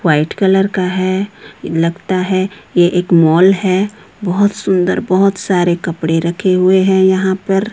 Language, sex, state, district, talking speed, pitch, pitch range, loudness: Hindi, female, Odisha, Sambalpur, 165 wpm, 185 Hz, 175-195 Hz, -13 LUFS